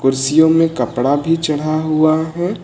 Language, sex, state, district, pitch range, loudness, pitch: Hindi, male, Uttar Pradesh, Lucknow, 140-160 Hz, -15 LUFS, 155 Hz